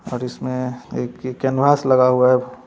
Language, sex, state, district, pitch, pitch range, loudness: Hindi, male, Bihar, Muzaffarpur, 130 Hz, 125-130 Hz, -19 LUFS